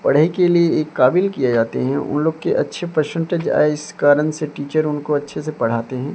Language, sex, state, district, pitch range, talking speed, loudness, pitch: Hindi, male, Odisha, Sambalpur, 140-160 Hz, 225 wpm, -18 LUFS, 150 Hz